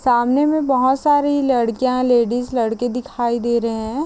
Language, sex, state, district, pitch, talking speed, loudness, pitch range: Hindi, female, Chhattisgarh, Raigarh, 250 Hz, 150 wpm, -18 LUFS, 235-275 Hz